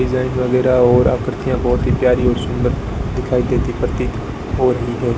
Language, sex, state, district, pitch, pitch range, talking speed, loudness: Hindi, female, Rajasthan, Bikaner, 125 Hz, 120-125 Hz, 175 wpm, -17 LUFS